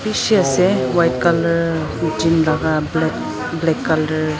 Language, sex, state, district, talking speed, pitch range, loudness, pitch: Nagamese, female, Nagaland, Dimapur, 95 wpm, 155-170 Hz, -17 LUFS, 160 Hz